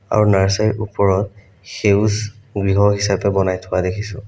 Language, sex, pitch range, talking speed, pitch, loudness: Assamese, male, 95-105 Hz, 125 wpm, 100 Hz, -18 LUFS